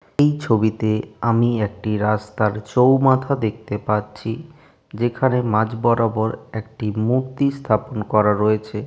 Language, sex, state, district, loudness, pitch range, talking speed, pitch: Bengali, male, West Bengal, Jalpaiguri, -20 LUFS, 105-125 Hz, 110 wpm, 110 Hz